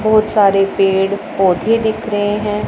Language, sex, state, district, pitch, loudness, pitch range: Hindi, female, Punjab, Pathankot, 205 Hz, -15 LUFS, 195-215 Hz